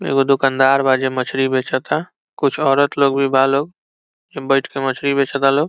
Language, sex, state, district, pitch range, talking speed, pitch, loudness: Bhojpuri, male, Bihar, Saran, 135-140 Hz, 210 wpm, 135 Hz, -17 LUFS